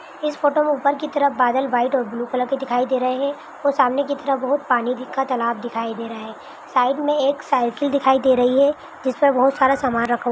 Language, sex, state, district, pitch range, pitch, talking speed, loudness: Hindi, female, Bihar, Araria, 245-280 Hz, 265 Hz, 225 wpm, -20 LUFS